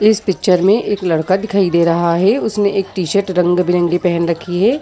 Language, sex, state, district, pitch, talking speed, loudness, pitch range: Hindi, female, Uttar Pradesh, Jyotiba Phule Nagar, 185 Hz, 200 wpm, -15 LUFS, 175-200 Hz